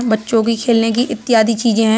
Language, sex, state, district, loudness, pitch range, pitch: Hindi, male, Uttar Pradesh, Budaun, -15 LUFS, 225-235 Hz, 225 Hz